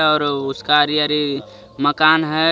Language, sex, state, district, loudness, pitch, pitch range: Hindi, male, Jharkhand, Garhwa, -17 LUFS, 150 Hz, 145-155 Hz